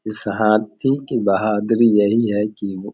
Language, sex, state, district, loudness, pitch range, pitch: Hindi, male, Bihar, Samastipur, -18 LUFS, 105-115 Hz, 105 Hz